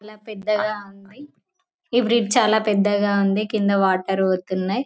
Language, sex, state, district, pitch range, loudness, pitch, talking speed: Telugu, female, Telangana, Karimnagar, 195-235 Hz, -20 LUFS, 210 Hz, 125 wpm